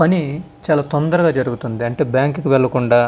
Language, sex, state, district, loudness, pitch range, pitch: Telugu, male, Andhra Pradesh, Visakhapatnam, -18 LUFS, 125-155 Hz, 140 Hz